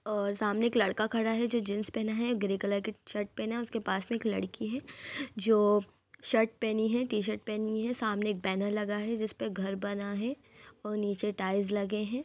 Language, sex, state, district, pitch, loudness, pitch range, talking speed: Hindi, female, Bihar, Gopalganj, 215 Hz, -32 LUFS, 205-225 Hz, 205 wpm